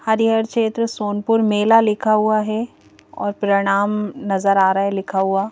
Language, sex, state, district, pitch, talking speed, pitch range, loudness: Hindi, female, Madhya Pradesh, Bhopal, 210 Hz, 165 wpm, 200-220 Hz, -18 LUFS